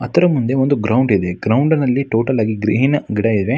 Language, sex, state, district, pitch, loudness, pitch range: Kannada, male, Karnataka, Mysore, 125 Hz, -16 LUFS, 110-140 Hz